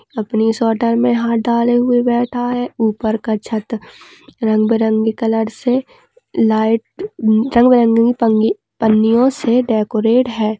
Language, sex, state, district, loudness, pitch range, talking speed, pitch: Hindi, female, Maharashtra, Dhule, -15 LUFS, 220-245 Hz, 110 wpm, 230 Hz